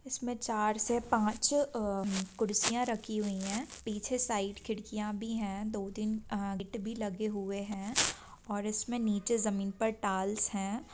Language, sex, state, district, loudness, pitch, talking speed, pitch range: Hindi, female, Bihar, Sitamarhi, -34 LUFS, 215 Hz, 175 wpm, 200-230 Hz